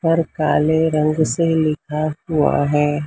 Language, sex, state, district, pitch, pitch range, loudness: Hindi, female, Maharashtra, Mumbai Suburban, 155 Hz, 150-160 Hz, -18 LUFS